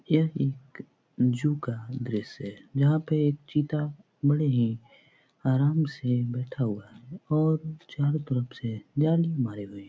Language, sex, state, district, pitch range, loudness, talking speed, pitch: Hindi, male, Bihar, Jahanabad, 120-155 Hz, -28 LUFS, 160 wpm, 140 Hz